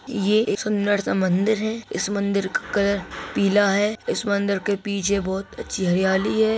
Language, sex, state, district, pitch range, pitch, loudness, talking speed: Hindi, male, Chhattisgarh, Kabirdham, 195-210 Hz, 200 Hz, -22 LUFS, 180 wpm